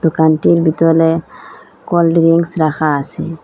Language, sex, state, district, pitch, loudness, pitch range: Bengali, female, Assam, Hailakandi, 165 Hz, -13 LUFS, 160-170 Hz